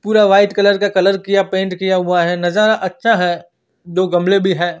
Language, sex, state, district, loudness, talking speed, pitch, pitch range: Hindi, male, Chandigarh, Chandigarh, -14 LUFS, 210 wpm, 190 Hz, 180-200 Hz